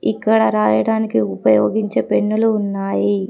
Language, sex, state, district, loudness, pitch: Telugu, female, Telangana, Komaram Bheem, -17 LUFS, 190 Hz